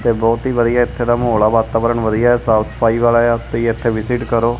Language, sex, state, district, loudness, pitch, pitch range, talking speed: Punjabi, male, Punjab, Kapurthala, -15 LUFS, 115 Hz, 115-120 Hz, 235 wpm